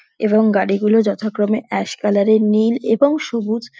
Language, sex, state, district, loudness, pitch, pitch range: Bengali, female, West Bengal, Dakshin Dinajpur, -17 LUFS, 220 Hz, 210-225 Hz